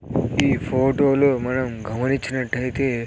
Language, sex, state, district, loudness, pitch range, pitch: Telugu, male, Andhra Pradesh, Sri Satya Sai, -21 LUFS, 125-135 Hz, 130 Hz